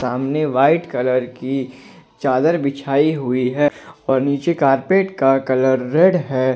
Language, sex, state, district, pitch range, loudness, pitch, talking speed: Hindi, male, Jharkhand, Ranchi, 130-150 Hz, -17 LUFS, 135 Hz, 135 wpm